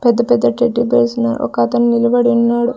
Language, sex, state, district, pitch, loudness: Telugu, female, Andhra Pradesh, Sri Satya Sai, 235 Hz, -14 LUFS